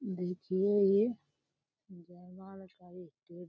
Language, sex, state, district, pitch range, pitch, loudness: Hindi, female, Uttar Pradesh, Deoria, 180-195 Hz, 185 Hz, -31 LUFS